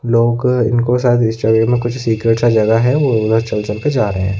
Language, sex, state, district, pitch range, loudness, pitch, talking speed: Hindi, male, Odisha, Khordha, 110-120 Hz, -14 LUFS, 115 Hz, 245 wpm